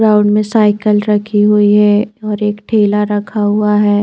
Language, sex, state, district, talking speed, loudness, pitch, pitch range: Hindi, female, Chandigarh, Chandigarh, 180 wpm, -12 LUFS, 210 Hz, 205-210 Hz